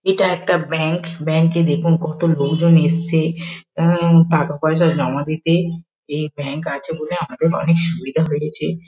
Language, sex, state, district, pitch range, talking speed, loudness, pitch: Bengali, female, West Bengal, Kolkata, 155-170 Hz, 140 wpm, -18 LUFS, 165 Hz